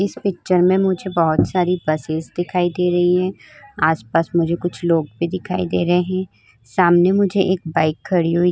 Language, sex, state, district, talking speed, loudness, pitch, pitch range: Hindi, female, Uttar Pradesh, Hamirpur, 190 wpm, -18 LUFS, 175 Hz, 165-185 Hz